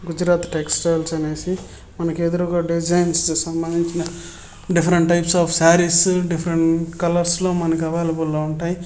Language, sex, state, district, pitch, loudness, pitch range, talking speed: Telugu, male, Andhra Pradesh, Chittoor, 170 Hz, -19 LUFS, 165-175 Hz, 115 wpm